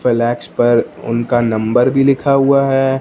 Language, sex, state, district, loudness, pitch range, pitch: Hindi, male, Punjab, Fazilka, -14 LUFS, 120-135 Hz, 125 Hz